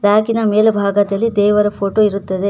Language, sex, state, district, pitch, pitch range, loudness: Kannada, female, Karnataka, Koppal, 205 Hz, 200-215 Hz, -15 LUFS